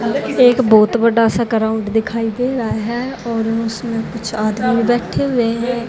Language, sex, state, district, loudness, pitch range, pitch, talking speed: Hindi, female, Haryana, Jhajjar, -16 LUFS, 220-240 Hz, 230 Hz, 165 wpm